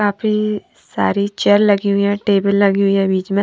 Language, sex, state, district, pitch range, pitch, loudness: Hindi, female, Punjab, Kapurthala, 200-205 Hz, 200 Hz, -16 LUFS